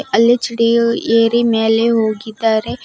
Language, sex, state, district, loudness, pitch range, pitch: Kannada, female, Karnataka, Bidar, -14 LUFS, 225-235 Hz, 230 Hz